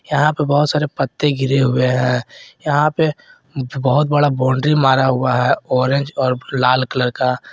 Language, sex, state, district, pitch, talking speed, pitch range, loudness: Hindi, male, Jharkhand, Garhwa, 135 Hz, 165 wpm, 130-145 Hz, -17 LUFS